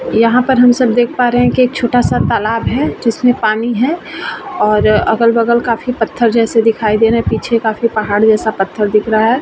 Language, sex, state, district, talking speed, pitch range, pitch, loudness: Hindi, female, Bihar, Vaishali, 225 wpm, 220-245 Hz, 230 Hz, -13 LUFS